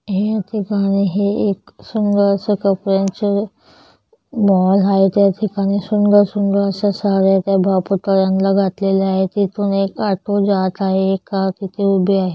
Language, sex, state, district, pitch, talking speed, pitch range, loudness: Marathi, female, Maharashtra, Chandrapur, 195 Hz, 150 wpm, 195-205 Hz, -16 LUFS